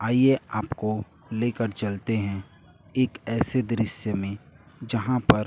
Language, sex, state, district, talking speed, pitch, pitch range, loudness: Hindi, male, Chhattisgarh, Raipur, 120 wpm, 115 Hz, 105-125 Hz, -27 LUFS